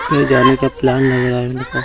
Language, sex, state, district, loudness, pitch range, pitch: Hindi, male, Bihar, Gaya, -14 LUFS, 125-135 Hz, 130 Hz